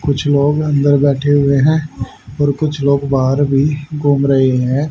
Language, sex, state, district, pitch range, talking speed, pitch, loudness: Hindi, male, Haryana, Rohtak, 140-145 Hz, 170 wpm, 140 Hz, -14 LUFS